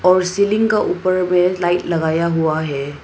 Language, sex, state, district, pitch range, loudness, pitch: Hindi, female, Arunachal Pradesh, Papum Pare, 160-185 Hz, -17 LUFS, 180 Hz